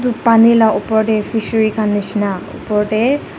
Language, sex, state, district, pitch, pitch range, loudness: Nagamese, female, Nagaland, Dimapur, 220 Hz, 210-225 Hz, -14 LUFS